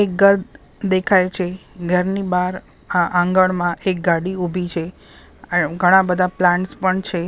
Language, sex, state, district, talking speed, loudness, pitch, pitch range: Gujarati, female, Maharashtra, Mumbai Suburban, 130 wpm, -18 LUFS, 180 Hz, 175-185 Hz